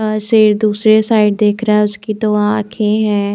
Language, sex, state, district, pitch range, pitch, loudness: Hindi, female, Chandigarh, Chandigarh, 210-215 Hz, 215 Hz, -13 LUFS